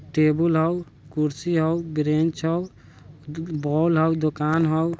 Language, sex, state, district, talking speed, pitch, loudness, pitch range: Bajjika, male, Bihar, Vaishali, 120 wpm, 160 Hz, -23 LUFS, 150-165 Hz